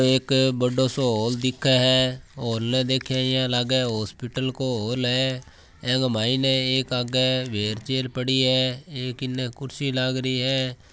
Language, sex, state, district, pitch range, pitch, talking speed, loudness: Marwari, male, Rajasthan, Churu, 125-130 Hz, 130 Hz, 150 wpm, -23 LUFS